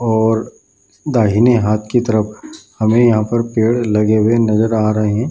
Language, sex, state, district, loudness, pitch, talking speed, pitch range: Hindi, male, Bihar, Bhagalpur, -14 LUFS, 110 Hz, 160 wpm, 105-120 Hz